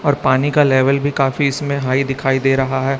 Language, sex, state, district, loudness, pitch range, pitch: Hindi, male, Chhattisgarh, Raipur, -16 LUFS, 135-140 Hz, 135 Hz